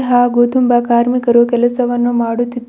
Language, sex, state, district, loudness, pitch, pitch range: Kannada, female, Karnataka, Bidar, -13 LUFS, 240 Hz, 240-245 Hz